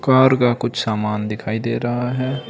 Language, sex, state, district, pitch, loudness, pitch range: Hindi, male, Uttar Pradesh, Saharanpur, 120 Hz, -19 LUFS, 110-130 Hz